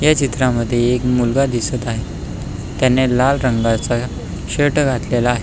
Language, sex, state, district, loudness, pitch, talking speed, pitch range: Marathi, male, Maharashtra, Pune, -17 LUFS, 125 Hz, 135 wpm, 115-130 Hz